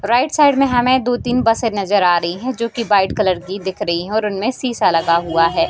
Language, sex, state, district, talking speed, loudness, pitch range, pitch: Hindi, female, Bihar, East Champaran, 250 wpm, -16 LUFS, 185-245 Hz, 215 Hz